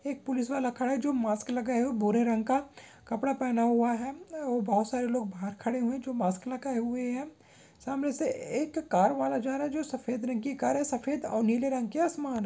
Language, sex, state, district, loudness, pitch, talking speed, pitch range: Hindi, male, Jharkhand, Sahebganj, -30 LUFS, 250 Hz, 240 wpm, 235-275 Hz